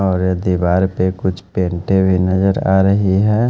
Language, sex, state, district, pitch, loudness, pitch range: Hindi, male, Haryana, Jhajjar, 95 Hz, -16 LUFS, 90-95 Hz